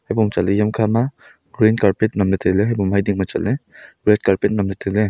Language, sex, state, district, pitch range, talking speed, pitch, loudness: Wancho, male, Arunachal Pradesh, Longding, 95-110 Hz, 70 wpm, 105 Hz, -18 LUFS